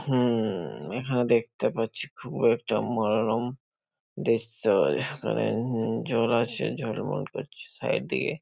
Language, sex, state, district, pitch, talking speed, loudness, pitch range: Bengali, male, West Bengal, Paschim Medinipur, 115 Hz, 105 wpm, -27 LUFS, 115-120 Hz